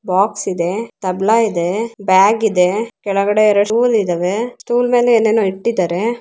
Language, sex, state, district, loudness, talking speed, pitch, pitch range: Kannada, female, Karnataka, Raichur, -15 LUFS, 135 wpm, 210 Hz, 185-230 Hz